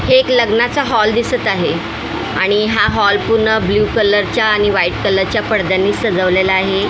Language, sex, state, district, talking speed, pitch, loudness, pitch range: Marathi, female, Maharashtra, Mumbai Suburban, 155 wpm, 210 Hz, -14 LUFS, 195-225 Hz